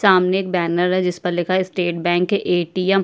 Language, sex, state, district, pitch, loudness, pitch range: Hindi, female, Uttarakhand, Tehri Garhwal, 180 Hz, -19 LUFS, 175-190 Hz